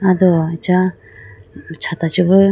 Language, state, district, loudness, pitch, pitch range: Idu Mishmi, Arunachal Pradesh, Lower Dibang Valley, -16 LUFS, 170 Hz, 160-185 Hz